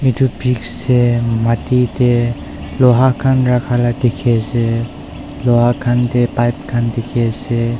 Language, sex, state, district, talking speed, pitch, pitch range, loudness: Nagamese, male, Nagaland, Dimapur, 130 wpm, 120 Hz, 115-125 Hz, -15 LUFS